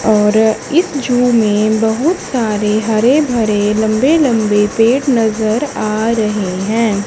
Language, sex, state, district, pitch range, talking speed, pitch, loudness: Hindi, female, Haryana, Charkhi Dadri, 215-245 Hz, 125 wpm, 220 Hz, -13 LUFS